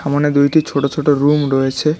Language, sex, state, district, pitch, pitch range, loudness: Bengali, male, West Bengal, Cooch Behar, 145 Hz, 140-150 Hz, -15 LUFS